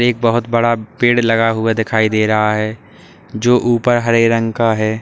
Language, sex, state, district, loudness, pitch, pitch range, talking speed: Hindi, male, Uttar Pradesh, Lalitpur, -15 LUFS, 115 Hz, 110-120 Hz, 190 wpm